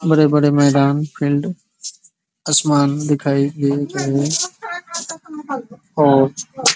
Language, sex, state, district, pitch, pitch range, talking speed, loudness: Hindi, male, Bihar, East Champaran, 155 Hz, 145-225 Hz, 90 wpm, -17 LUFS